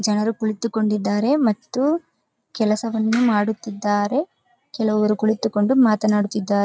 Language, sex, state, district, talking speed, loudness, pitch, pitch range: Kannada, female, Karnataka, Chamarajanagar, 70 wpm, -20 LUFS, 220 Hz, 210-240 Hz